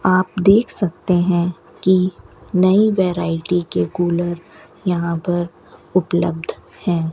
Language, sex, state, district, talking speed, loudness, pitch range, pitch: Hindi, female, Rajasthan, Bikaner, 110 wpm, -18 LUFS, 170-185 Hz, 175 Hz